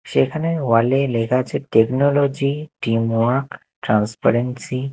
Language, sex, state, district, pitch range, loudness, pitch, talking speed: Bengali, male, Odisha, Nuapada, 115-140 Hz, -19 LUFS, 130 Hz, 120 wpm